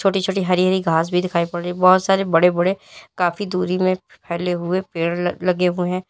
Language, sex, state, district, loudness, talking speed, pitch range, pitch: Hindi, female, Uttar Pradesh, Lalitpur, -19 LUFS, 225 wpm, 175-185 Hz, 180 Hz